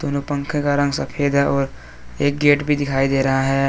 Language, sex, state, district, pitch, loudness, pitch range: Hindi, male, Jharkhand, Deoghar, 140 Hz, -19 LUFS, 135-145 Hz